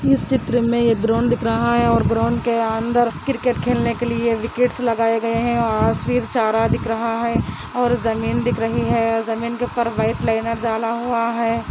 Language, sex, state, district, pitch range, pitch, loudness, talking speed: Hindi, female, Andhra Pradesh, Anantapur, 225-235 Hz, 230 Hz, -19 LUFS, 180 wpm